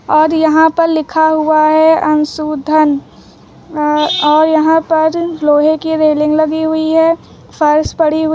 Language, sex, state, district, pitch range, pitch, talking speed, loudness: Hindi, female, Uttar Pradesh, Lucknow, 305-320 Hz, 315 Hz, 145 wpm, -12 LUFS